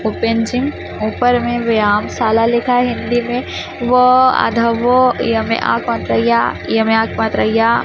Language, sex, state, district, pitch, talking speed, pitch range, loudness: Hindi, male, Chhattisgarh, Raipur, 230 Hz, 175 wpm, 220-245 Hz, -15 LUFS